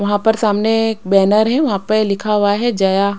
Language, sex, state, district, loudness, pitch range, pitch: Hindi, female, Maharashtra, Mumbai Suburban, -15 LUFS, 200-220 Hz, 210 Hz